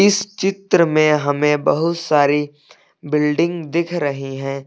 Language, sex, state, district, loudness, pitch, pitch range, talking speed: Hindi, male, Uttar Pradesh, Lucknow, -18 LUFS, 150 Hz, 145-170 Hz, 130 wpm